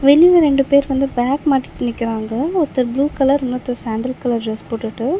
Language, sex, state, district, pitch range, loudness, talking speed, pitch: Tamil, female, Tamil Nadu, Chennai, 235-280 Hz, -17 LUFS, 175 wpm, 260 Hz